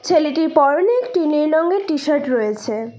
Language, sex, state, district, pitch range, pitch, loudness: Bengali, female, West Bengal, Cooch Behar, 280-335 Hz, 305 Hz, -17 LUFS